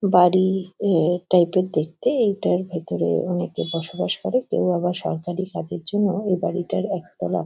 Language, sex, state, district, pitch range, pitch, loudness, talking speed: Bengali, female, West Bengal, Kolkata, 170-190 Hz, 180 Hz, -22 LUFS, 145 wpm